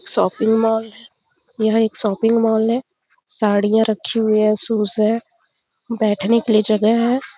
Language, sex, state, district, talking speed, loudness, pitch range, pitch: Hindi, female, Chhattisgarh, Bastar, 155 wpm, -17 LUFS, 215-230 Hz, 225 Hz